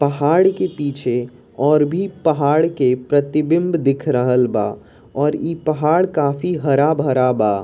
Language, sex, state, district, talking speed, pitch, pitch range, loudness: Bhojpuri, male, Bihar, East Champaran, 140 wpm, 145 Hz, 130-160 Hz, -17 LUFS